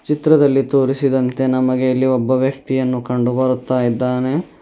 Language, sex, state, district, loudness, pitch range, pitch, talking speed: Kannada, male, Karnataka, Bidar, -17 LUFS, 125-135 Hz, 130 Hz, 115 wpm